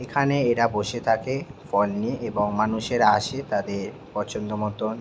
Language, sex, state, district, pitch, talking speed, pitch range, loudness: Bengali, male, West Bengal, Jhargram, 110 Hz, 145 wpm, 105-125 Hz, -25 LUFS